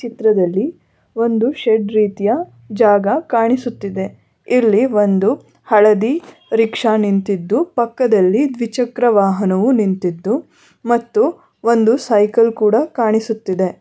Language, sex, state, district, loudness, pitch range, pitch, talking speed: Kannada, female, Karnataka, Bangalore, -16 LUFS, 205-240 Hz, 225 Hz, 80 wpm